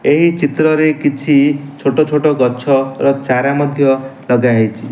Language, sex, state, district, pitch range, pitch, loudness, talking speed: Odia, male, Odisha, Nuapada, 135-150 Hz, 140 Hz, -13 LUFS, 120 wpm